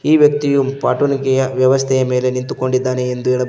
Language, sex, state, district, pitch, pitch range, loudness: Kannada, male, Karnataka, Koppal, 130 Hz, 125-140 Hz, -16 LUFS